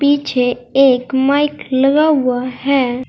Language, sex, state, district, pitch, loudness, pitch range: Hindi, female, Uttar Pradesh, Saharanpur, 265 Hz, -15 LUFS, 250-285 Hz